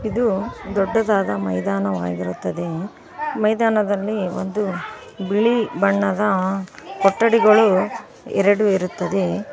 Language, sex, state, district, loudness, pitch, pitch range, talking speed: Kannada, female, Karnataka, Koppal, -20 LUFS, 195 Hz, 185-215 Hz, 65 wpm